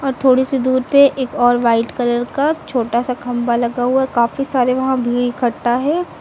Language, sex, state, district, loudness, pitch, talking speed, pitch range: Hindi, female, Uttar Pradesh, Lucknow, -16 LUFS, 250 Hz, 215 wpm, 240-265 Hz